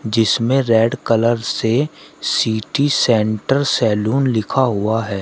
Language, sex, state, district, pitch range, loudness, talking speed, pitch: Hindi, male, Uttar Pradesh, Shamli, 110-130 Hz, -17 LUFS, 115 wpm, 115 Hz